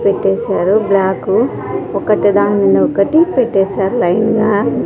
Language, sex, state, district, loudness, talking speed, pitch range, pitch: Telugu, female, Andhra Pradesh, Sri Satya Sai, -13 LUFS, 110 wpm, 190-205 Hz, 195 Hz